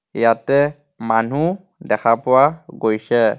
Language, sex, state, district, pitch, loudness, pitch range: Assamese, male, Assam, Kamrup Metropolitan, 130 Hz, -18 LUFS, 115-145 Hz